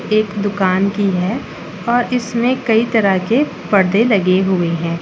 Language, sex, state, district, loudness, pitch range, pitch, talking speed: Hindi, female, Chhattisgarh, Raigarh, -16 LUFS, 185-235 Hz, 205 Hz, 155 wpm